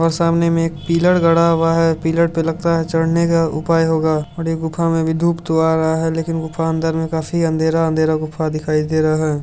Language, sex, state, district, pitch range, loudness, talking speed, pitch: Hindi, male, Bihar, Supaul, 160-165 Hz, -17 LUFS, 215 wpm, 165 Hz